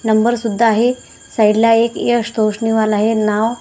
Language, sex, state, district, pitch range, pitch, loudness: Marathi, male, Maharashtra, Washim, 215-230 Hz, 225 Hz, -15 LUFS